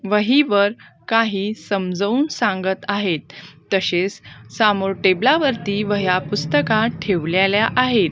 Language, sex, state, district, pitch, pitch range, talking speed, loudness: Marathi, female, Maharashtra, Gondia, 200 Hz, 190-220 Hz, 90 wpm, -19 LUFS